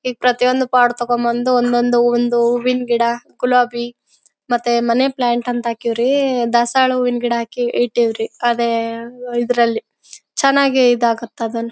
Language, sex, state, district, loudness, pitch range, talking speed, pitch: Kannada, female, Karnataka, Bellary, -17 LUFS, 235-250 Hz, 130 wpm, 240 Hz